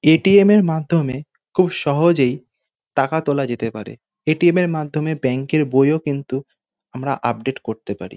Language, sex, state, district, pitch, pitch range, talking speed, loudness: Bengali, male, West Bengal, North 24 Parganas, 150 Hz, 135-165 Hz, 175 wpm, -18 LUFS